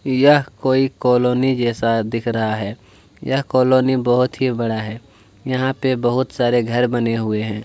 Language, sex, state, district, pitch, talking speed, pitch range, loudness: Hindi, male, Chhattisgarh, Kabirdham, 120 Hz, 165 wpm, 115-130 Hz, -18 LUFS